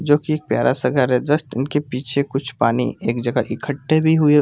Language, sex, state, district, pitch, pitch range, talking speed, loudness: Hindi, male, Jharkhand, Sahebganj, 140 Hz, 125-150 Hz, 215 wpm, -19 LUFS